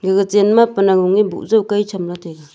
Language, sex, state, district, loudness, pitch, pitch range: Wancho, female, Arunachal Pradesh, Longding, -15 LUFS, 195 Hz, 185-210 Hz